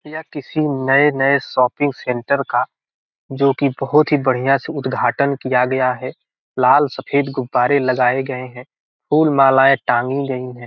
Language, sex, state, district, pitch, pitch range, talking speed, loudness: Hindi, male, Bihar, Gopalganj, 135 Hz, 130-140 Hz, 150 wpm, -17 LUFS